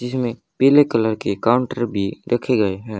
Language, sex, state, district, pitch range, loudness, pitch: Hindi, male, Haryana, Jhajjar, 105-125 Hz, -19 LUFS, 120 Hz